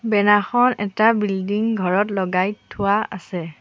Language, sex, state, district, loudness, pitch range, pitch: Assamese, female, Assam, Sonitpur, -20 LUFS, 190-215 Hz, 205 Hz